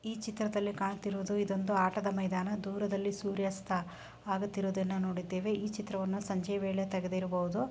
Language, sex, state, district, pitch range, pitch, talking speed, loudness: Kannada, female, Karnataka, Shimoga, 190-205 Hz, 195 Hz, 115 wpm, -35 LUFS